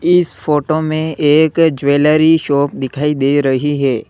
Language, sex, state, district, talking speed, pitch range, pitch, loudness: Hindi, male, Uttar Pradesh, Lalitpur, 145 wpm, 140-160 Hz, 150 Hz, -14 LUFS